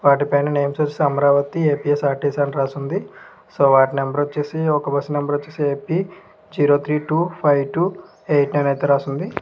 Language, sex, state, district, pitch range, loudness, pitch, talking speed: Telugu, male, Andhra Pradesh, Krishna, 140-155 Hz, -19 LUFS, 145 Hz, 185 wpm